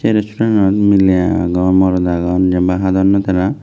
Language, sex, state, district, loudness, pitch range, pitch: Chakma, male, Tripura, West Tripura, -13 LUFS, 90-100 Hz, 95 Hz